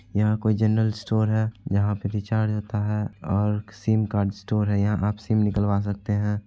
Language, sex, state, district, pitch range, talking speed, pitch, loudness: Hindi, male, Bihar, Araria, 105-110 Hz, 185 wpm, 105 Hz, -24 LUFS